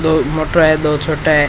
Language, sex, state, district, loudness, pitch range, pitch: Rajasthani, male, Rajasthan, Churu, -14 LUFS, 150-160 Hz, 155 Hz